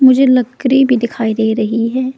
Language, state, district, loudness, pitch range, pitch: Hindi, Arunachal Pradesh, Lower Dibang Valley, -13 LUFS, 225-260 Hz, 250 Hz